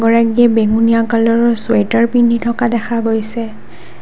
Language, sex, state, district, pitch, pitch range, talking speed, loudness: Assamese, female, Assam, Kamrup Metropolitan, 230 Hz, 220-235 Hz, 105 wpm, -13 LUFS